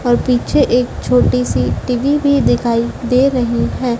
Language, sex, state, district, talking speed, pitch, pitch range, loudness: Hindi, female, Madhya Pradesh, Dhar, 150 wpm, 245 Hz, 230-255 Hz, -15 LUFS